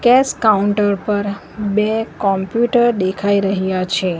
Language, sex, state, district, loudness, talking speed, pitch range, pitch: Gujarati, female, Gujarat, Valsad, -17 LUFS, 115 wpm, 195-225 Hz, 205 Hz